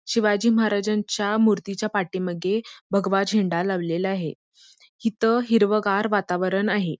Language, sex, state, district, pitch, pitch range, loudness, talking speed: Marathi, female, Karnataka, Belgaum, 205 Hz, 190-215 Hz, -23 LUFS, 105 wpm